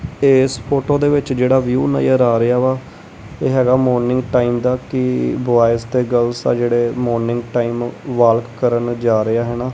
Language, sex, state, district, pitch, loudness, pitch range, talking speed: Punjabi, male, Punjab, Kapurthala, 120 Hz, -16 LUFS, 120-130 Hz, 180 wpm